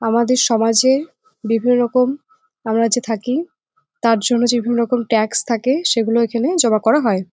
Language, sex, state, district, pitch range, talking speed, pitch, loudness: Bengali, female, West Bengal, Jalpaiguri, 225-265 Hz, 155 wpm, 240 Hz, -17 LUFS